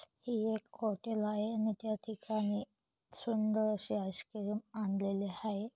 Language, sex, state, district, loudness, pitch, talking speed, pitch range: Marathi, female, Maharashtra, Chandrapur, -37 LUFS, 215 Hz, 125 wpm, 205-220 Hz